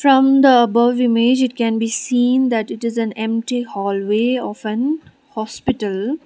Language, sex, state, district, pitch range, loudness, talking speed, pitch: English, female, Sikkim, Gangtok, 220-260 Hz, -17 LUFS, 165 wpm, 240 Hz